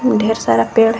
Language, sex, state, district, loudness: Hindi, female, Jharkhand, Garhwa, -15 LUFS